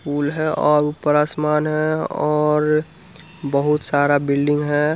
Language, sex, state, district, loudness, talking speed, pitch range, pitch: Hindi, male, Bihar, Muzaffarpur, -18 LUFS, 135 wpm, 145-155 Hz, 150 Hz